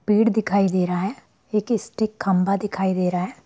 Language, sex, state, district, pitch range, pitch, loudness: Hindi, female, Bihar, Sitamarhi, 185-215 Hz, 195 Hz, -22 LUFS